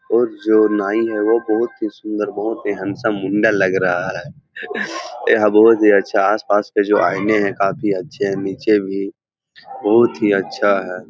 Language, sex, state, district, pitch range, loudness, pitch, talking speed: Hindi, male, Bihar, Jahanabad, 100-110 Hz, -17 LUFS, 105 Hz, 195 wpm